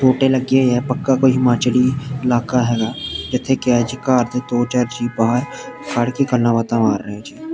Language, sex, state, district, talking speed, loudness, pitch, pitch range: Punjabi, male, Punjab, Pathankot, 190 wpm, -17 LUFS, 125 Hz, 120-130 Hz